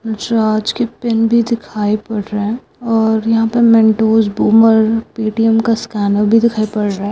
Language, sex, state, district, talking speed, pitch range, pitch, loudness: Hindi, female, Andhra Pradesh, Anantapur, 175 wpm, 215-230 Hz, 220 Hz, -14 LUFS